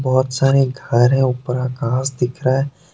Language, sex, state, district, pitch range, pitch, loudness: Hindi, male, Jharkhand, Deoghar, 125-135 Hz, 130 Hz, -18 LUFS